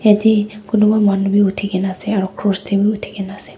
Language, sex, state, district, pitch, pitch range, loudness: Nagamese, female, Nagaland, Dimapur, 205 Hz, 195-210 Hz, -16 LUFS